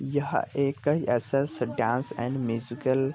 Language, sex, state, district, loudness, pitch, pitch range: Hindi, male, Bihar, Gopalganj, -28 LUFS, 135 Hz, 120-140 Hz